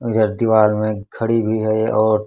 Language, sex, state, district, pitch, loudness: Hindi, male, Chhattisgarh, Raipur, 110 Hz, -17 LUFS